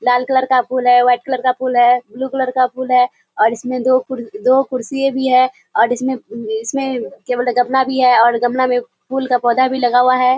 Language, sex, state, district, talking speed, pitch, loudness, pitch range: Hindi, female, Bihar, Kishanganj, 225 wpm, 250 Hz, -15 LUFS, 245-260 Hz